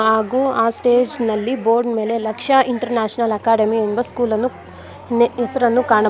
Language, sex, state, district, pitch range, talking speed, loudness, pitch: Kannada, female, Karnataka, Bangalore, 220-245 Hz, 150 wpm, -18 LUFS, 235 Hz